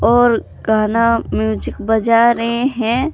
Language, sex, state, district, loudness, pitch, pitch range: Hindi, male, Jharkhand, Palamu, -15 LUFS, 230 Hz, 225-240 Hz